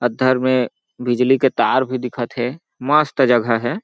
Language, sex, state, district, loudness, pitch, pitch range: Chhattisgarhi, male, Chhattisgarh, Jashpur, -18 LUFS, 130 Hz, 120-130 Hz